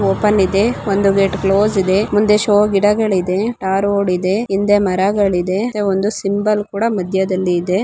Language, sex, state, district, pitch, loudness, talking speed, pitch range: Kannada, female, Karnataka, Dharwad, 200 Hz, -15 LUFS, 75 wpm, 190-210 Hz